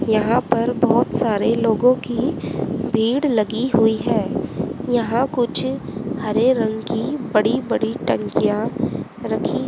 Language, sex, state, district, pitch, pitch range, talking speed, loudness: Hindi, female, Haryana, Rohtak, 235 Hz, 225-250 Hz, 120 wpm, -20 LUFS